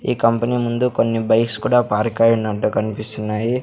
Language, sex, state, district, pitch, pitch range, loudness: Telugu, male, Andhra Pradesh, Sri Satya Sai, 115 Hz, 110-120 Hz, -18 LUFS